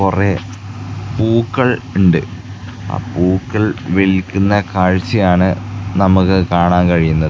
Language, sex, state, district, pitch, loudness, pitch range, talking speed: Malayalam, male, Kerala, Kasaragod, 95 Hz, -14 LUFS, 90-105 Hz, 80 wpm